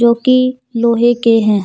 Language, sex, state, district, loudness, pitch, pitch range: Hindi, female, Jharkhand, Deoghar, -12 LUFS, 235 Hz, 230-255 Hz